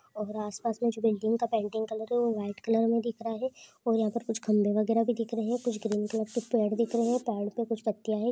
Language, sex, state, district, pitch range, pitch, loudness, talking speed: Hindi, female, West Bengal, North 24 Parganas, 215-235 Hz, 225 Hz, -30 LUFS, 280 wpm